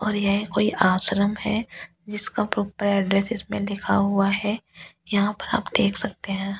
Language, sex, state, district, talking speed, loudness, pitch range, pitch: Hindi, female, Delhi, New Delhi, 165 wpm, -23 LUFS, 195-210 Hz, 205 Hz